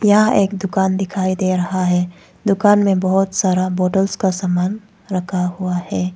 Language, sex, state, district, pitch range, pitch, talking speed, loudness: Hindi, female, Arunachal Pradesh, Papum Pare, 185-195 Hz, 190 Hz, 165 wpm, -17 LUFS